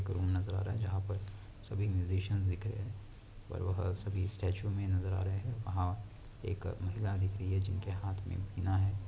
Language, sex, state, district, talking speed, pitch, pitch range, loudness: Hindi, male, Chhattisgarh, Raigarh, 220 wpm, 95 Hz, 95-100 Hz, -37 LUFS